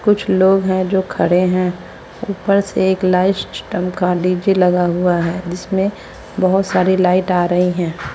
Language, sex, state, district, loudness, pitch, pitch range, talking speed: Hindi, female, Bihar, West Champaran, -16 LUFS, 185 Hz, 180-190 Hz, 170 wpm